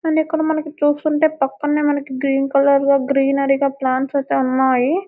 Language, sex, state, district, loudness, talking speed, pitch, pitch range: Telugu, female, Telangana, Karimnagar, -17 LUFS, 175 wpm, 280 Hz, 275-300 Hz